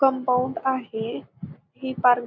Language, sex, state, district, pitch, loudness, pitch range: Marathi, female, Maharashtra, Pune, 255 Hz, -25 LUFS, 245-260 Hz